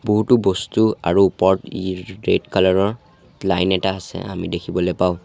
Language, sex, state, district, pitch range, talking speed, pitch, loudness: Assamese, male, Assam, Sonitpur, 95-105 Hz, 160 wpm, 95 Hz, -19 LUFS